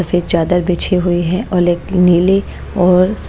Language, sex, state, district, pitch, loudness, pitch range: Hindi, female, Bihar, Patna, 180 Hz, -14 LUFS, 175-185 Hz